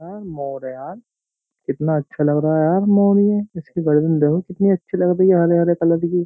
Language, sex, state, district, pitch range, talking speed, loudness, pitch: Hindi, male, Uttar Pradesh, Jyotiba Phule Nagar, 155-190 Hz, 220 wpm, -18 LUFS, 170 Hz